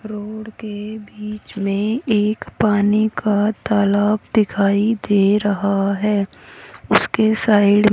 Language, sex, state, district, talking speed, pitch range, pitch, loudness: Hindi, female, Haryana, Rohtak, 115 wpm, 205-215 Hz, 210 Hz, -18 LUFS